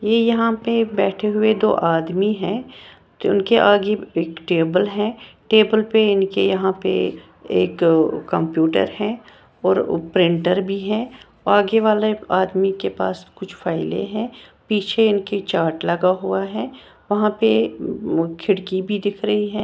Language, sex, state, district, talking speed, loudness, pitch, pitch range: Hindi, female, Haryana, Jhajjar, 145 wpm, -19 LUFS, 200 Hz, 170-215 Hz